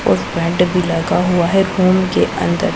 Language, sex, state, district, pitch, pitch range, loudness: Hindi, female, Punjab, Pathankot, 180 Hz, 170-185 Hz, -15 LUFS